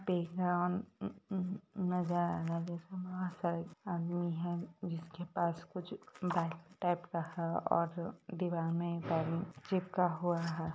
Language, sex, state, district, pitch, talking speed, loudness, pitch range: Hindi, female, Jharkhand, Sahebganj, 175 Hz, 130 wpm, -37 LUFS, 170-180 Hz